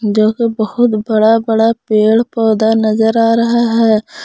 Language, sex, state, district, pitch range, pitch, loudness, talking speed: Hindi, female, Jharkhand, Palamu, 220-230 Hz, 225 Hz, -12 LUFS, 140 wpm